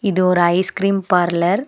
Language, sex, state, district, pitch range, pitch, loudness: Tamil, female, Tamil Nadu, Nilgiris, 175-195 Hz, 185 Hz, -16 LUFS